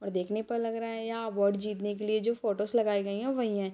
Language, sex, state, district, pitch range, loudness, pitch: Hindi, female, Bihar, Sitamarhi, 205-230 Hz, -31 LUFS, 215 Hz